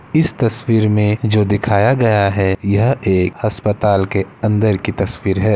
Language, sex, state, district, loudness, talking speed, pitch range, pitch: Hindi, male, Bihar, Samastipur, -16 LUFS, 160 wpm, 100-110 Hz, 105 Hz